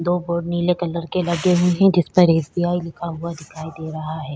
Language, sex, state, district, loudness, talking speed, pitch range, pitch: Hindi, female, Chhattisgarh, Korba, -20 LUFS, 235 wpm, 160-175 Hz, 170 Hz